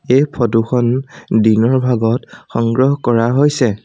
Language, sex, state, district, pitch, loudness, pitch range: Assamese, male, Assam, Sonitpur, 120 Hz, -15 LUFS, 115-130 Hz